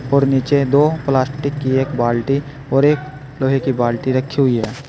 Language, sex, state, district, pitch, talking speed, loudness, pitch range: Hindi, male, Uttar Pradesh, Saharanpur, 135 Hz, 185 wpm, -17 LUFS, 130-140 Hz